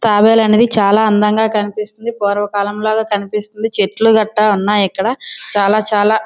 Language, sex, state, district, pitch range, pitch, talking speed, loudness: Telugu, female, Andhra Pradesh, Srikakulam, 205-220 Hz, 210 Hz, 135 wpm, -14 LUFS